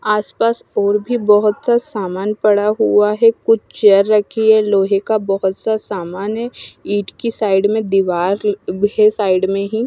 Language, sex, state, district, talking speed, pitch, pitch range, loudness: Hindi, female, Punjab, Kapurthala, 170 wpm, 210 Hz, 195-220 Hz, -15 LUFS